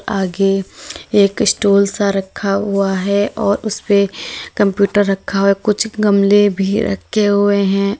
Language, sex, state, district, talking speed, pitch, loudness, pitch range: Hindi, female, Uttar Pradesh, Lalitpur, 145 wpm, 200 Hz, -15 LUFS, 195-205 Hz